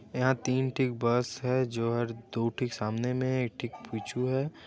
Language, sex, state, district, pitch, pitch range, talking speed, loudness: Chhattisgarhi, male, Chhattisgarh, Raigarh, 125 Hz, 120-130 Hz, 180 wpm, -31 LUFS